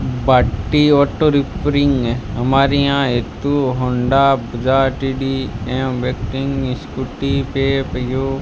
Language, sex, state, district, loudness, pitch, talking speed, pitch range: Hindi, male, Rajasthan, Bikaner, -17 LUFS, 135 Hz, 105 wpm, 125-140 Hz